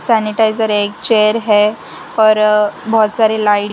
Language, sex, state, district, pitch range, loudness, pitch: Hindi, female, Gujarat, Valsad, 210-220 Hz, -13 LUFS, 215 Hz